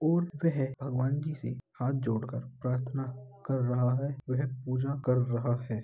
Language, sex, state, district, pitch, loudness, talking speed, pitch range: Hindi, male, Uttar Pradesh, Muzaffarnagar, 130 Hz, -32 LUFS, 165 wpm, 125-135 Hz